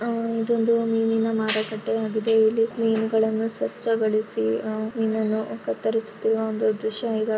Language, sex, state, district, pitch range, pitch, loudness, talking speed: Kannada, female, Karnataka, Shimoga, 220-225 Hz, 220 Hz, -24 LUFS, 115 wpm